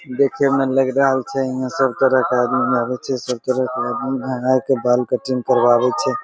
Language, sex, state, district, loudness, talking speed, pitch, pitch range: Maithili, male, Bihar, Begusarai, -18 LUFS, 220 wpm, 130 Hz, 125-135 Hz